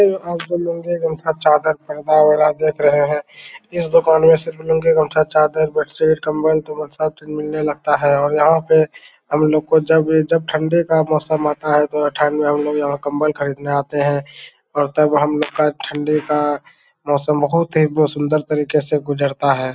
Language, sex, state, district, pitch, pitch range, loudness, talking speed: Hindi, male, Bihar, Saran, 150 Hz, 150-155 Hz, -17 LUFS, 175 wpm